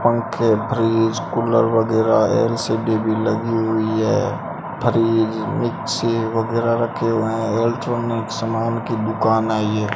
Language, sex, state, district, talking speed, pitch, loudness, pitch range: Hindi, male, Rajasthan, Bikaner, 125 wpm, 115 Hz, -19 LUFS, 110-115 Hz